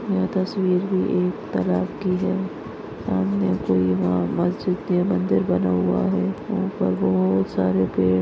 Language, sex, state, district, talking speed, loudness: Hindi, female, Maharashtra, Nagpur, 145 wpm, -22 LUFS